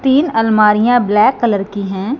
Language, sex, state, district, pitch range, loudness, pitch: Hindi, female, Punjab, Fazilka, 205-255 Hz, -13 LUFS, 225 Hz